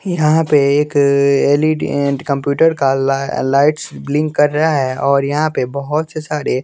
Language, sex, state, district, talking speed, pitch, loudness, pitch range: Hindi, male, Bihar, West Champaran, 170 wpm, 145 Hz, -15 LUFS, 140-155 Hz